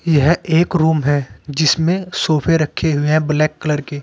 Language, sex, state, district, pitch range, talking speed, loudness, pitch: Hindi, male, Uttar Pradesh, Saharanpur, 150-165 Hz, 180 wpm, -16 LUFS, 155 Hz